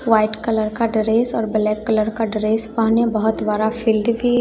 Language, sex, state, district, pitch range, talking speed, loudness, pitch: Hindi, female, Bihar, West Champaran, 215-230 Hz, 190 wpm, -19 LUFS, 220 Hz